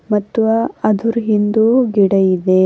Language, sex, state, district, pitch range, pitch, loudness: Kannada, female, Karnataka, Bidar, 195-225 Hz, 215 Hz, -15 LUFS